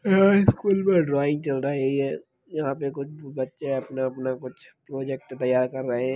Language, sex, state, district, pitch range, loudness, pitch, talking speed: Hindi, male, Bihar, Lakhisarai, 130-145 Hz, -25 LUFS, 135 Hz, 185 wpm